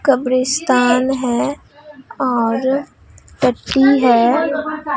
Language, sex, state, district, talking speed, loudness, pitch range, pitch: Hindi, female, Bihar, Katihar, 60 wpm, -16 LUFS, 245-290 Hz, 260 Hz